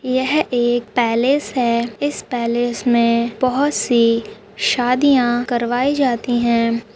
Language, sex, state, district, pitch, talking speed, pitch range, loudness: Hindi, female, Rajasthan, Churu, 240 Hz, 110 wpm, 235-260 Hz, -17 LUFS